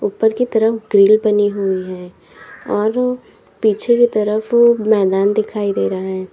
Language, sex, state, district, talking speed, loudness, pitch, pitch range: Hindi, female, Uttar Pradesh, Lalitpur, 150 wpm, -15 LUFS, 215 Hz, 195-225 Hz